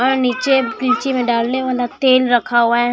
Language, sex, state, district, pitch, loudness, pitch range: Hindi, male, Bihar, Katihar, 255 Hz, -16 LUFS, 240-260 Hz